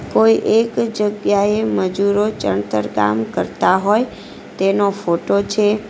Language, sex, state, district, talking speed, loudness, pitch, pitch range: Gujarati, female, Gujarat, Valsad, 110 wpm, -17 LUFS, 200 Hz, 185-210 Hz